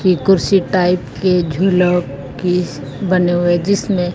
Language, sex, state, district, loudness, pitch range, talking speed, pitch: Hindi, female, Haryana, Jhajjar, -15 LUFS, 175-185 Hz, 130 wpm, 180 Hz